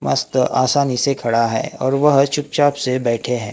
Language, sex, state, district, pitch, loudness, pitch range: Hindi, male, Maharashtra, Gondia, 130 Hz, -17 LUFS, 115-140 Hz